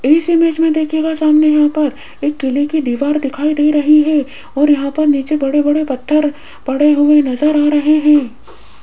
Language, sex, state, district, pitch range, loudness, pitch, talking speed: Hindi, female, Rajasthan, Jaipur, 285-305 Hz, -13 LUFS, 295 Hz, 190 wpm